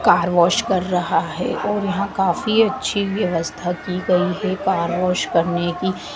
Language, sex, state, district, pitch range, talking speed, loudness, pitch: Hindi, female, Madhya Pradesh, Dhar, 175-200 Hz, 165 wpm, -20 LUFS, 185 Hz